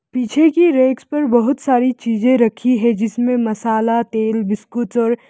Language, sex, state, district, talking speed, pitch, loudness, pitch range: Hindi, female, Arunachal Pradesh, Lower Dibang Valley, 160 wpm, 240 Hz, -16 LUFS, 225-255 Hz